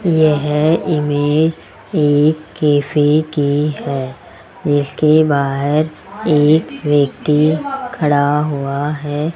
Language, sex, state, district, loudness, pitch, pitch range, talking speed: Hindi, male, Rajasthan, Jaipur, -15 LUFS, 150 Hz, 145-155 Hz, 85 wpm